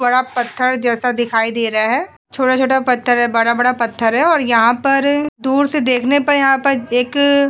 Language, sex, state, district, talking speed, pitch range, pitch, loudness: Hindi, female, Uttar Pradesh, Etah, 185 wpm, 240-275 Hz, 255 Hz, -15 LUFS